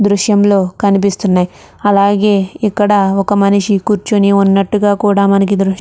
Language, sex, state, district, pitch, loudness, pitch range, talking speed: Telugu, female, Andhra Pradesh, Chittoor, 200 Hz, -12 LUFS, 195-205 Hz, 135 wpm